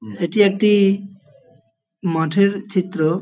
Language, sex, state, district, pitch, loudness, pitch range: Bengali, male, West Bengal, Paschim Medinipur, 185 Hz, -18 LUFS, 160-200 Hz